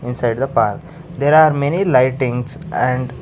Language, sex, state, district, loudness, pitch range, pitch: English, male, Karnataka, Bangalore, -16 LUFS, 125-155 Hz, 135 Hz